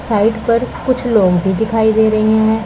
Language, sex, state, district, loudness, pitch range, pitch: Hindi, female, Punjab, Pathankot, -14 LUFS, 215-225 Hz, 220 Hz